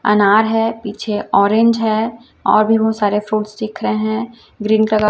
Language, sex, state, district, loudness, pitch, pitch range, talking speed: Hindi, female, Chhattisgarh, Raipur, -16 LUFS, 220 Hz, 210-225 Hz, 190 wpm